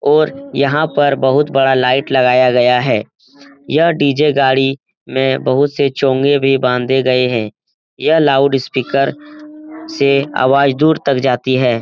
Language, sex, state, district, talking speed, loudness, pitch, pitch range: Hindi, male, Bihar, Lakhisarai, 145 wpm, -13 LUFS, 135 Hz, 130-145 Hz